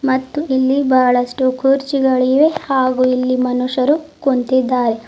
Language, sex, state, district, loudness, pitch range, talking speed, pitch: Kannada, female, Karnataka, Bidar, -15 LUFS, 255-270 Hz, 95 wpm, 260 Hz